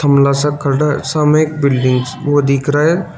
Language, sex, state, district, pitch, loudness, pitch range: Hindi, male, Uttar Pradesh, Shamli, 145 Hz, -14 LUFS, 140-150 Hz